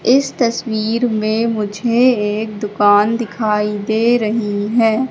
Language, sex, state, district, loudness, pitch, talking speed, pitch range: Hindi, female, Madhya Pradesh, Katni, -16 LUFS, 220 Hz, 115 wpm, 210-235 Hz